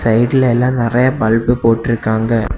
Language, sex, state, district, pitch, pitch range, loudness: Tamil, male, Tamil Nadu, Kanyakumari, 115 Hz, 115-125 Hz, -14 LUFS